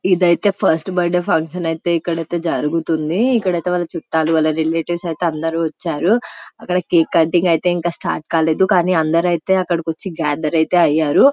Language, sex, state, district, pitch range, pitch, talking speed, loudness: Telugu, female, Telangana, Karimnagar, 160-180 Hz, 170 Hz, 155 wpm, -17 LUFS